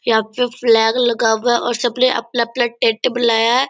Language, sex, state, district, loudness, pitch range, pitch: Hindi, female, Bihar, Purnia, -16 LUFS, 230-245 Hz, 240 Hz